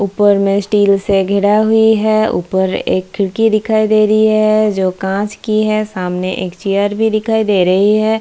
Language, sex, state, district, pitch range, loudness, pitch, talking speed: Hindi, female, Bihar, Kishanganj, 195-215 Hz, -13 LUFS, 205 Hz, 190 wpm